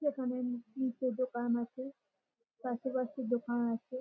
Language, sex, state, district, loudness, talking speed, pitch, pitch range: Bengali, female, West Bengal, Malda, -36 LUFS, 90 wpm, 255 Hz, 240-260 Hz